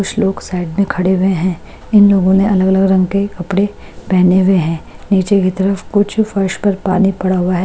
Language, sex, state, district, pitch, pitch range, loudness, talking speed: Hindi, female, Odisha, Malkangiri, 190 Hz, 185-200 Hz, -14 LUFS, 220 wpm